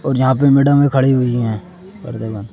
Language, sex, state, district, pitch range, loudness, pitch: Hindi, male, Madhya Pradesh, Bhopal, 120-145 Hz, -14 LUFS, 130 Hz